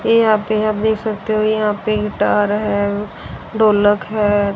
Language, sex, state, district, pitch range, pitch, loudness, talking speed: Hindi, female, Haryana, Rohtak, 205-215 Hz, 215 Hz, -16 LUFS, 170 wpm